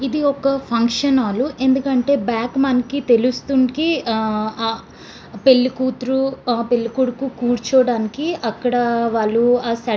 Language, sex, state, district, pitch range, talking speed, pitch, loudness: Telugu, female, Andhra Pradesh, Srikakulam, 235-270 Hz, 120 wpm, 250 Hz, -18 LUFS